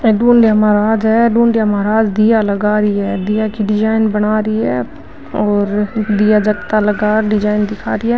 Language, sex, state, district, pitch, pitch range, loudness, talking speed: Marwari, female, Rajasthan, Nagaur, 215 Hz, 210-220 Hz, -14 LUFS, 170 wpm